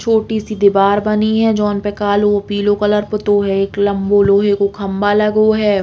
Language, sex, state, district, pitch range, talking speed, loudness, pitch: Bundeli, female, Uttar Pradesh, Hamirpur, 200-210 Hz, 195 wpm, -14 LUFS, 205 Hz